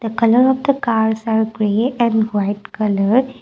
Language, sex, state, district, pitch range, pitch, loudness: English, female, Assam, Kamrup Metropolitan, 215-245 Hz, 225 Hz, -17 LUFS